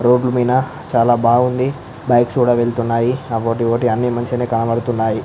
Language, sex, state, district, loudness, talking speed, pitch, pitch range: Telugu, male, Andhra Pradesh, Visakhapatnam, -16 LUFS, 135 wpm, 120 Hz, 115-125 Hz